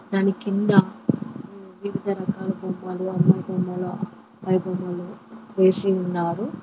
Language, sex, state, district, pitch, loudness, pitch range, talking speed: Telugu, female, Telangana, Mahabubabad, 190 Hz, -24 LUFS, 185-200 Hz, 90 wpm